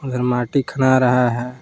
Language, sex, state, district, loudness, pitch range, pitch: Hindi, male, Jharkhand, Palamu, -18 LUFS, 125-130 Hz, 125 Hz